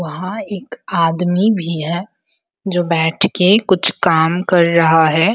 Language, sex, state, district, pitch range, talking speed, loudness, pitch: Hindi, female, Bihar, Vaishali, 165-200 Hz, 155 wpm, -15 LUFS, 175 Hz